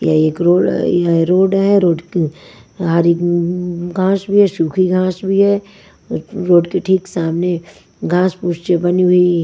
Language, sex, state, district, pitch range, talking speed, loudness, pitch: Hindi, female, Maharashtra, Washim, 170-190 Hz, 160 wpm, -15 LUFS, 180 Hz